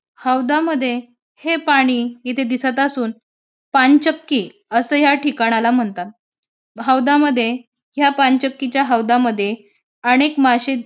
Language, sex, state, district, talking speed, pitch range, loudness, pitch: Marathi, female, Maharashtra, Aurangabad, 100 wpm, 240-280 Hz, -16 LUFS, 255 Hz